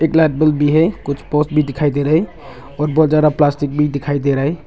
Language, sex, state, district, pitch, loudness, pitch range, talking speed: Hindi, male, Arunachal Pradesh, Longding, 150 Hz, -16 LUFS, 145-155 Hz, 245 wpm